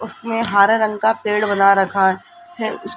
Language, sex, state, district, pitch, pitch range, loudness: Hindi, female, Rajasthan, Jaipur, 220 Hz, 200-225 Hz, -17 LUFS